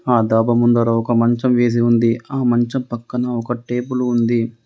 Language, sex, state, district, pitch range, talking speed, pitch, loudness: Telugu, male, Telangana, Adilabad, 115-125 Hz, 165 wpm, 120 Hz, -17 LUFS